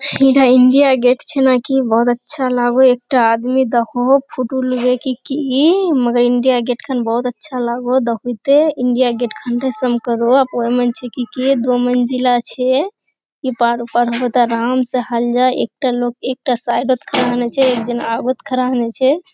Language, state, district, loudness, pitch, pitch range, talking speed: Surjapuri, Bihar, Kishanganj, -15 LUFS, 250 Hz, 240-260 Hz, 130 wpm